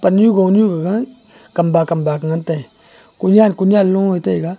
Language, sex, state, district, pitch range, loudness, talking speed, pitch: Wancho, male, Arunachal Pradesh, Longding, 170-215 Hz, -15 LUFS, 155 wpm, 190 Hz